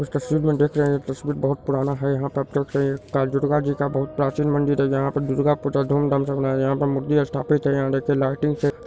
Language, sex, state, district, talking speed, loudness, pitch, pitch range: Hindi, male, Bihar, Supaul, 250 wpm, -22 LUFS, 140 Hz, 135-145 Hz